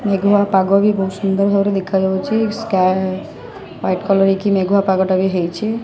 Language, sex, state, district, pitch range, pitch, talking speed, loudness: Odia, female, Odisha, Sambalpur, 190-200 Hz, 195 Hz, 185 wpm, -16 LUFS